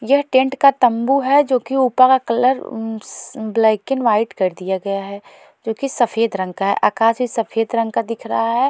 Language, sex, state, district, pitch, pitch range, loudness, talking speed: Hindi, female, Goa, North and South Goa, 230 Hz, 220-260 Hz, -17 LUFS, 215 wpm